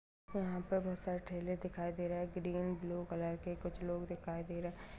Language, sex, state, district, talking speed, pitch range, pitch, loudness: Hindi, female, Bihar, Madhepura, 230 wpm, 175-180 Hz, 175 Hz, -41 LUFS